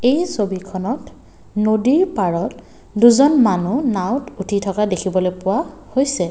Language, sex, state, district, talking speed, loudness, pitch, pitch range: Assamese, male, Assam, Kamrup Metropolitan, 115 wpm, -18 LUFS, 210 Hz, 190-260 Hz